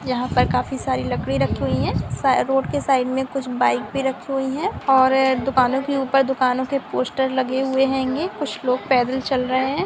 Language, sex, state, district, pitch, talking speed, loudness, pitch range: Hindi, female, Chhattisgarh, Korba, 265 Hz, 215 wpm, -21 LUFS, 255-270 Hz